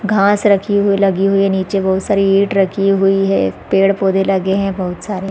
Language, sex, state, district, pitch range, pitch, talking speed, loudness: Hindi, female, Chhattisgarh, Raigarh, 190-200 Hz, 195 Hz, 205 wpm, -14 LUFS